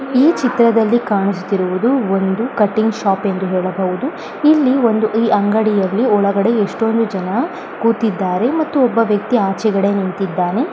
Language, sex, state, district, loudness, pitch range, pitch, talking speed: Kannada, female, Karnataka, Bellary, -16 LUFS, 195-235 Hz, 220 Hz, 130 wpm